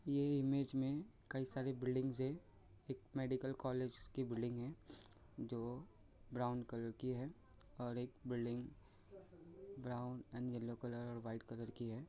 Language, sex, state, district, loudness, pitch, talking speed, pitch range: Marathi, male, Maharashtra, Sindhudurg, -45 LUFS, 125 Hz, 145 wpm, 115-135 Hz